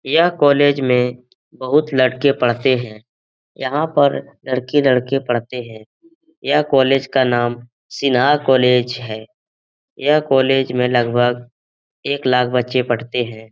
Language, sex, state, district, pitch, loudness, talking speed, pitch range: Hindi, male, Bihar, Jahanabad, 125 Hz, -17 LUFS, 125 wpm, 120-140 Hz